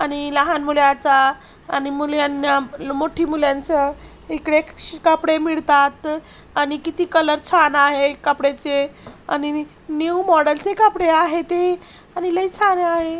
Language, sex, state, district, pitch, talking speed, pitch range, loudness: Marathi, male, Maharashtra, Chandrapur, 305 Hz, 130 wpm, 285-330 Hz, -18 LUFS